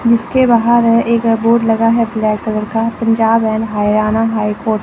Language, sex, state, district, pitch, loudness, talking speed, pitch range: Hindi, female, Chandigarh, Chandigarh, 225 Hz, -13 LUFS, 200 wpm, 220-230 Hz